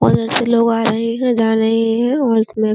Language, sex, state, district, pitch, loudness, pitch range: Hindi, female, Uttar Pradesh, Jyotiba Phule Nagar, 225 Hz, -15 LUFS, 220-235 Hz